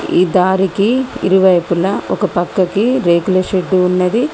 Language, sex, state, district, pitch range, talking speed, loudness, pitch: Telugu, female, Telangana, Komaram Bheem, 180-200 Hz, 110 wpm, -14 LUFS, 185 Hz